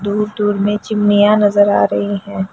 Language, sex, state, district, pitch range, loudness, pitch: Hindi, female, Bihar, Gaya, 200-210 Hz, -14 LUFS, 205 Hz